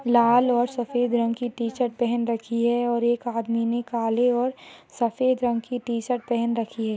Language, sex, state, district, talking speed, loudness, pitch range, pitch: Hindi, female, Maharashtra, Solapur, 190 wpm, -24 LUFS, 235-245 Hz, 240 Hz